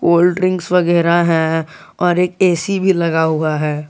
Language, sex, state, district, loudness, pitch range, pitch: Hindi, male, Jharkhand, Garhwa, -15 LUFS, 160-180 Hz, 170 Hz